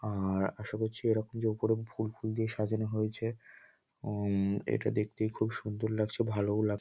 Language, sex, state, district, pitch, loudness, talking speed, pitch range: Bengali, male, West Bengal, North 24 Parganas, 110 Hz, -33 LUFS, 175 wpm, 105-110 Hz